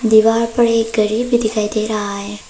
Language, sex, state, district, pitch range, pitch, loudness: Hindi, female, Arunachal Pradesh, Papum Pare, 210-230 Hz, 220 Hz, -16 LUFS